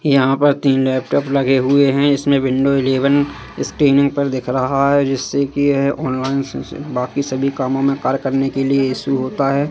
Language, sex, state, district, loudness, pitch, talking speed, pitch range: Hindi, male, Madhya Pradesh, Katni, -17 LUFS, 135 Hz, 190 wpm, 130-140 Hz